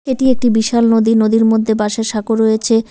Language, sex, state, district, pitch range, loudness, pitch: Bengali, female, West Bengal, Cooch Behar, 220-230 Hz, -14 LUFS, 225 Hz